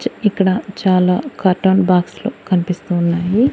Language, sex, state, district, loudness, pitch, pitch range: Telugu, female, Andhra Pradesh, Annamaya, -16 LUFS, 185 Hz, 180-205 Hz